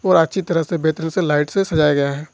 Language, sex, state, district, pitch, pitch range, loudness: Hindi, male, Jharkhand, Ranchi, 160 Hz, 150-180 Hz, -18 LUFS